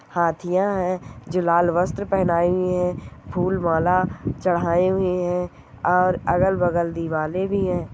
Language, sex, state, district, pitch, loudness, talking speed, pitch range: Hindi, female, Goa, North and South Goa, 180 Hz, -22 LUFS, 145 wpm, 170-185 Hz